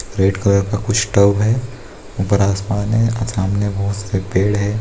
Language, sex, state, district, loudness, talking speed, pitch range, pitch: Hindi, male, Bihar, Muzaffarpur, -17 LUFS, 185 wpm, 100-110 Hz, 100 Hz